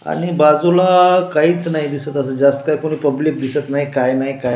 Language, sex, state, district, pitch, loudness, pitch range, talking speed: Marathi, male, Maharashtra, Washim, 150 Hz, -15 LUFS, 140-165 Hz, 170 wpm